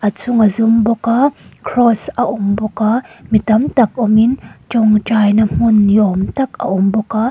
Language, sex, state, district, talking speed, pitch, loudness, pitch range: Mizo, female, Mizoram, Aizawl, 195 wpm, 220 Hz, -14 LUFS, 210-230 Hz